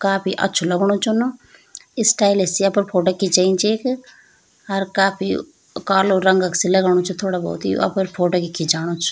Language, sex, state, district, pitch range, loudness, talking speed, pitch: Garhwali, female, Uttarakhand, Tehri Garhwal, 180-200 Hz, -18 LUFS, 175 wpm, 190 Hz